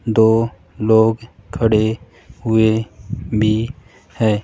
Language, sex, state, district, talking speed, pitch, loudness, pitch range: Hindi, male, Rajasthan, Jaipur, 80 wpm, 110 Hz, -17 LUFS, 110-115 Hz